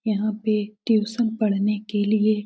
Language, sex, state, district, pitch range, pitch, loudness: Hindi, female, Bihar, Lakhisarai, 210-215 Hz, 215 Hz, -23 LUFS